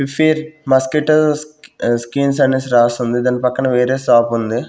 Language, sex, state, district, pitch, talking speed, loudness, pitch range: Telugu, male, Andhra Pradesh, Sri Satya Sai, 130 Hz, 140 wpm, -15 LUFS, 120-150 Hz